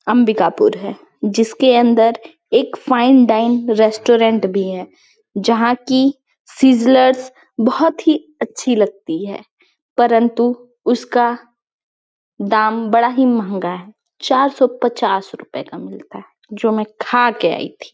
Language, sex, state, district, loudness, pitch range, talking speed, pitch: Hindi, female, Chhattisgarh, Balrampur, -15 LUFS, 225-260 Hz, 125 wpm, 240 Hz